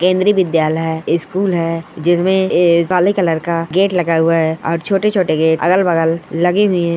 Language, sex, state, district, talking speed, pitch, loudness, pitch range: Hindi, male, Rajasthan, Churu, 170 wpm, 170 Hz, -15 LUFS, 165-185 Hz